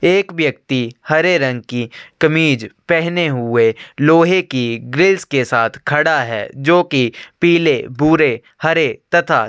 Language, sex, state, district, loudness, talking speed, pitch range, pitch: Hindi, male, Chhattisgarh, Sukma, -15 LUFS, 135 wpm, 125-170 Hz, 155 Hz